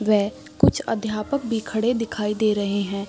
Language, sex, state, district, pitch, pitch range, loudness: Hindi, female, Bihar, Gaya, 215 Hz, 205-225 Hz, -23 LUFS